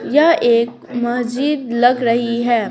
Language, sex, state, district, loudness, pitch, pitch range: Hindi, female, Bihar, Patna, -16 LUFS, 240 Hz, 235-255 Hz